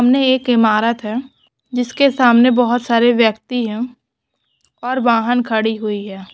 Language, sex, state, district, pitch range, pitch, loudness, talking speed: Hindi, female, West Bengal, Purulia, 220-250 Hz, 240 Hz, -16 LUFS, 140 wpm